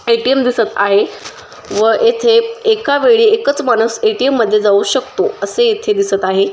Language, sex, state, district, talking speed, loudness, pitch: Marathi, female, Maharashtra, Chandrapur, 155 wpm, -13 LUFS, 275 Hz